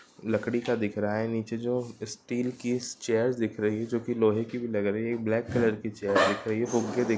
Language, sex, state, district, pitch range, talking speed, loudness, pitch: Hindi, male, Bihar, Gopalganj, 110-120 Hz, 250 wpm, -29 LUFS, 115 Hz